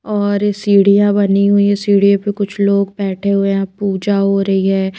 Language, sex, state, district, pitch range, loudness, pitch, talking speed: Hindi, female, Himachal Pradesh, Shimla, 195-205 Hz, -14 LUFS, 200 Hz, 205 wpm